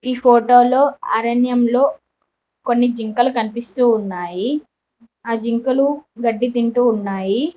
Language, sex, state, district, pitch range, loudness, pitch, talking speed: Telugu, female, Telangana, Mahabubabad, 230-255 Hz, -17 LUFS, 240 Hz, 110 wpm